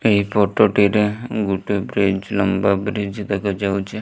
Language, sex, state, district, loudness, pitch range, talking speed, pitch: Odia, male, Odisha, Malkangiri, -19 LUFS, 100-105 Hz, 120 wpm, 100 Hz